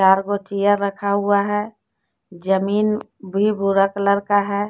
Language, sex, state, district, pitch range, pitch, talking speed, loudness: Hindi, female, Jharkhand, Deoghar, 195-205 Hz, 200 Hz, 155 wpm, -19 LUFS